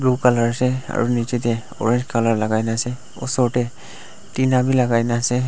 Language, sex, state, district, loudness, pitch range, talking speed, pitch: Nagamese, male, Nagaland, Dimapur, -20 LUFS, 115-125 Hz, 195 wpm, 120 Hz